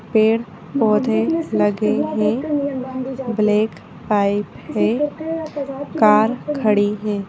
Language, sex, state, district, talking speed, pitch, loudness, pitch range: Hindi, female, Madhya Pradesh, Bhopal, 80 wpm, 220 Hz, -19 LUFS, 210-280 Hz